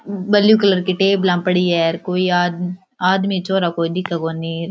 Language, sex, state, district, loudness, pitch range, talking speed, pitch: Rajasthani, female, Rajasthan, Churu, -17 LUFS, 175-195 Hz, 180 wpm, 180 Hz